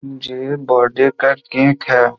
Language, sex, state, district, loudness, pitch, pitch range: Hindi, male, Bihar, East Champaran, -15 LUFS, 135 Hz, 125-135 Hz